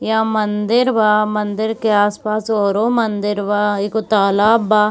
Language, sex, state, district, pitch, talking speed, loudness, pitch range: Hindi, female, Bihar, Kishanganj, 215 Hz, 145 wpm, -16 LUFS, 205-220 Hz